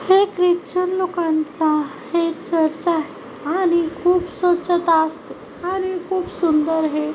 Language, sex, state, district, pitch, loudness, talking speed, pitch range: Marathi, female, Maharashtra, Chandrapur, 340 Hz, -20 LUFS, 115 wpm, 315-360 Hz